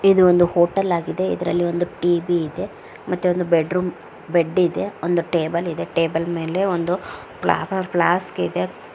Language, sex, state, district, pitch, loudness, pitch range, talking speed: Kannada, female, Karnataka, Mysore, 175 Hz, -21 LUFS, 170-180 Hz, 150 wpm